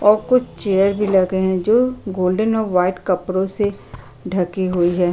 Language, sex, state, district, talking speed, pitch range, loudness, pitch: Hindi, female, Uttar Pradesh, Jyotiba Phule Nagar, 175 wpm, 180-210 Hz, -18 LUFS, 190 Hz